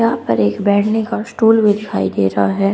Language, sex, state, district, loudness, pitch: Hindi, female, Haryana, Rohtak, -15 LUFS, 200 Hz